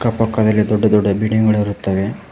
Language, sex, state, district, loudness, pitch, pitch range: Kannada, male, Karnataka, Koppal, -16 LUFS, 110 Hz, 105-110 Hz